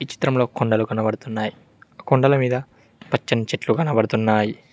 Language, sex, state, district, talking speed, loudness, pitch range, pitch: Telugu, male, Telangana, Mahabubabad, 115 wpm, -21 LUFS, 110-130 Hz, 115 Hz